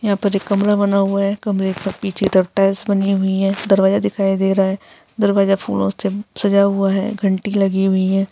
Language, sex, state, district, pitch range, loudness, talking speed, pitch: Hindi, female, Bihar, Gaya, 195-200 Hz, -17 LUFS, 215 wpm, 195 Hz